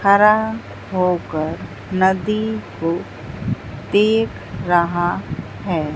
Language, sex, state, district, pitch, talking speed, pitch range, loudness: Hindi, female, Bihar, Katihar, 185 Hz, 70 wpm, 165-210 Hz, -19 LUFS